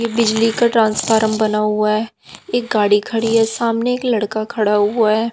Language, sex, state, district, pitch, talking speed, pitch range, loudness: Hindi, female, Haryana, Jhajjar, 220 Hz, 200 wpm, 215-230 Hz, -16 LUFS